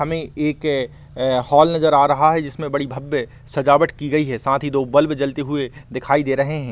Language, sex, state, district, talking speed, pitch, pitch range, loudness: Hindi, male, Jharkhand, Sahebganj, 225 wpm, 140 Hz, 135-150 Hz, -19 LUFS